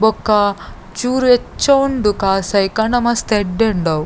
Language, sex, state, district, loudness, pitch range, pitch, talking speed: Tulu, female, Karnataka, Dakshina Kannada, -15 LUFS, 195-240 Hz, 215 Hz, 145 wpm